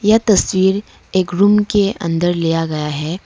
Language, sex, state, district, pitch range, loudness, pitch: Hindi, female, Arunachal Pradesh, Lower Dibang Valley, 165-205 Hz, -16 LUFS, 190 Hz